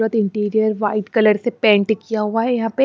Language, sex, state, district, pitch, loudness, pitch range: Hindi, female, Punjab, Pathankot, 220 Hz, -18 LUFS, 210-225 Hz